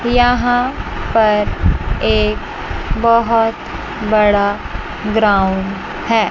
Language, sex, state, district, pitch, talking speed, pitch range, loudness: Hindi, female, Chandigarh, Chandigarh, 215 Hz, 65 wpm, 190-235 Hz, -16 LUFS